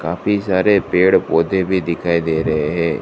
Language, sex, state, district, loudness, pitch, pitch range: Hindi, male, Gujarat, Gandhinagar, -16 LUFS, 85 Hz, 80-95 Hz